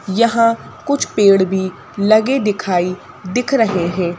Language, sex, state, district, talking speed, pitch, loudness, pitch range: Hindi, female, Madhya Pradesh, Bhopal, 130 wpm, 200 Hz, -16 LUFS, 185-230 Hz